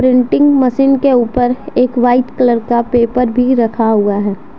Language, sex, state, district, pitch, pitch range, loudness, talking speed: Hindi, female, Jharkhand, Deoghar, 245 Hz, 235-255 Hz, -12 LUFS, 170 wpm